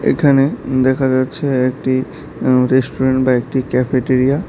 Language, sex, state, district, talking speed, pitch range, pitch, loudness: Bengali, male, Tripura, South Tripura, 135 wpm, 130-135 Hz, 130 Hz, -15 LUFS